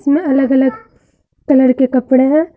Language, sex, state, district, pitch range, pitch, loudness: Hindi, female, Uttar Pradesh, Saharanpur, 260-285 Hz, 270 Hz, -12 LUFS